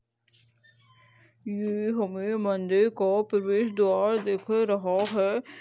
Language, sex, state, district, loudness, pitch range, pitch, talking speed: Hindi, female, Goa, North and South Goa, -26 LUFS, 180-215 Hz, 200 Hz, 95 wpm